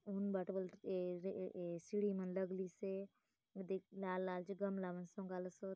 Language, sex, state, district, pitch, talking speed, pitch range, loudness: Halbi, female, Chhattisgarh, Bastar, 190 Hz, 135 wpm, 185-195 Hz, -45 LUFS